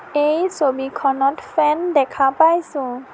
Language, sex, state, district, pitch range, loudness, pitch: Assamese, female, Assam, Sonitpur, 270-315 Hz, -18 LUFS, 290 Hz